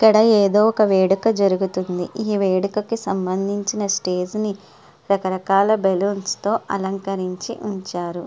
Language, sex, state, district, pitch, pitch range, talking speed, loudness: Telugu, female, Andhra Pradesh, Guntur, 195 Hz, 190-210 Hz, 110 wpm, -20 LUFS